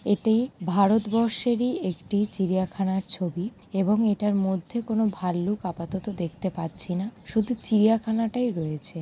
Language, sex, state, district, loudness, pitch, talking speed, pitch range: Bengali, female, West Bengal, Jalpaiguri, -26 LUFS, 200 Hz, 120 wpm, 185-220 Hz